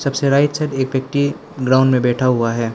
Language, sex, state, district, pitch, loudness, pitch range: Hindi, male, Arunachal Pradesh, Lower Dibang Valley, 130 Hz, -17 LUFS, 125-140 Hz